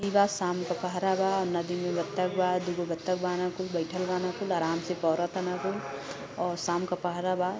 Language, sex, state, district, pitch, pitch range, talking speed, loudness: Bhojpuri, female, Uttar Pradesh, Gorakhpur, 180 Hz, 175-185 Hz, 215 wpm, -30 LUFS